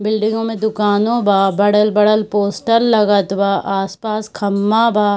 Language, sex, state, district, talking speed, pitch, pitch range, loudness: Hindi, female, Bihar, Darbhanga, 130 wpm, 210 Hz, 200-220 Hz, -15 LUFS